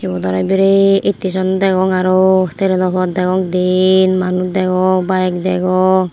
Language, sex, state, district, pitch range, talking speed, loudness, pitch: Chakma, female, Tripura, Unakoti, 185-190 Hz, 135 wpm, -14 LUFS, 185 Hz